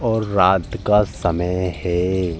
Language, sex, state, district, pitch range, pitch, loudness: Hindi, male, Uttar Pradesh, Jalaun, 90-105 Hz, 90 Hz, -19 LUFS